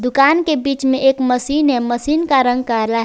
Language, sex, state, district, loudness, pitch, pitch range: Hindi, female, Jharkhand, Garhwa, -15 LUFS, 265 Hz, 245-280 Hz